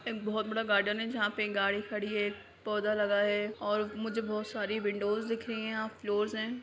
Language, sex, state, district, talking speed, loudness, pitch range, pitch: Hindi, female, Jharkhand, Sahebganj, 225 wpm, -32 LUFS, 205-220 Hz, 215 Hz